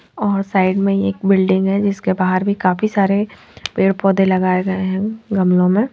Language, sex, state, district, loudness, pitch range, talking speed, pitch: Hindi, female, Bihar, Patna, -17 LUFS, 185-200 Hz, 180 wpm, 195 Hz